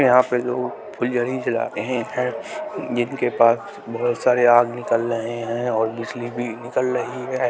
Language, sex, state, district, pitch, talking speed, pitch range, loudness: Hindi, male, Bihar, West Champaran, 120 Hz, 170 wpm, 120-125 Hz, -22 LUFS